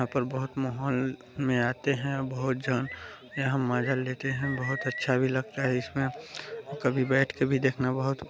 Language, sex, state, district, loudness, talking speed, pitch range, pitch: Hindi, male, Chhattisgarh, Balrampur, -29 LUFS, 190 wpm, 130-135 Hz, 130 Hz